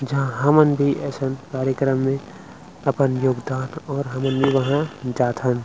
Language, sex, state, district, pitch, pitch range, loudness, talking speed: Chhattisgarhi, male, Chhattisgarh, Rajnandgaon, 135 Hz, 130-140 Hz, -21 LUFS, 150 wpm